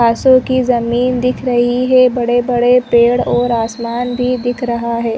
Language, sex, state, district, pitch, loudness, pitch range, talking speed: Hindi, female, Chhattisgarh, Rajnandgaon, 245 Hz, -13 LUFS, 235-250 Hz, 185 wpm